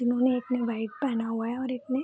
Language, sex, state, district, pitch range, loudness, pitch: Hindi, female, Bihar, Vaishali, 230-255 Hz, -29 LUFS, 245 Hz